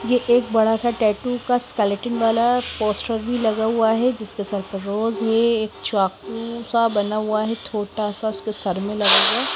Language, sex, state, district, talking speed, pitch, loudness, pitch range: Hindi, female, Himachal Pradesh, Shimla, 180 wpm, 220 Hz, -20 LUFS, 210-235 Hz